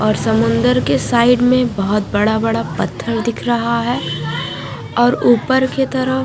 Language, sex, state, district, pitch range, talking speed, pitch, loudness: Hindi, female, Punjab, Fazilka, 165-245 Hz, 155 wpm, 230 Hz, -16 LUFS